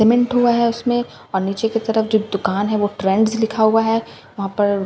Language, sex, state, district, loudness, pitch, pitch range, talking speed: Hindi, female, Bihar, Katihar, -18 LUFS, 220 Hz, 205-230 Hz, 235 wpm